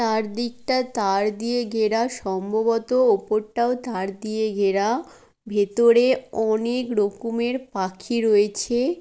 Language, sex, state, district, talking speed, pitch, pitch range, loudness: Bengali, female, West Bengal, Kolkata, 120 wpm, 225 Hz, 210-240 Hz, -22 LUFS